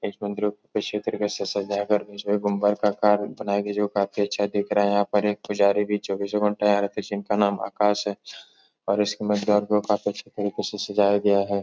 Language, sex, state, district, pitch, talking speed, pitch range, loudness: Hindi, male, Uttar Pradesh, Etah, 105 Hz, 210 wpm, 100-105 Hz, -24 LUFS